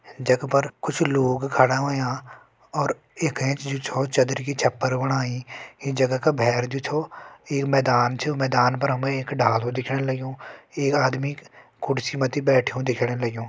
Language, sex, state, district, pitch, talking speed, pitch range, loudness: Hindi, male, Uttarakhand, Tehri Garhwal, 135 Hz, 170 wpm, 130-140 Hz, -23 LUFS